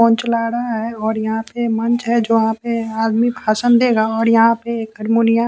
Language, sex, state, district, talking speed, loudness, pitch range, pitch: Hindi, male, Bihar, West Champaran, 195 wpm, -17 LUFS, 225-235 Hz, 230 Hz